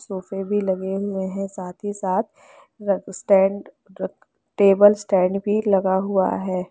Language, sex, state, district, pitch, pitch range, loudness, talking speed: Hindi, female, Chhattisgarh, Raigarh, 195 Hz, 190-205 Hz, -21 LUFS, 145 wpm